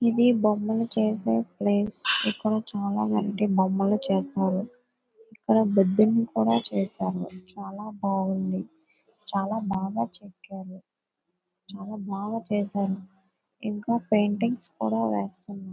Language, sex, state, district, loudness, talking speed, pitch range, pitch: Telugu, female, Andhra Pradesh, Visakhapatnam, -26 LUFS, 85 wpm, 185-215 Hz, 200 Hz